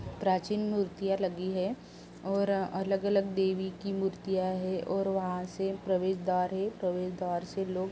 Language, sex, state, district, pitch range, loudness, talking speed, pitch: Hindi, female, Uttar Pradesh, Jalaun, 185-195 Hz, -32 LUFS, 160 wpm, 190 Hz